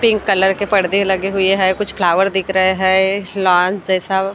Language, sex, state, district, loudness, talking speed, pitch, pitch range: Hindi, female, Maharashtra, Gondia, -15 LUFS, 195 wpm, 190 Hz, 190-195 Hz